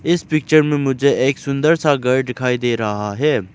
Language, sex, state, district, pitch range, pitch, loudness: Hindi, male, Arunachal Pradesh, Lower Dibang Valley, 125-150 Hz, 140 Hz, -17 LUFS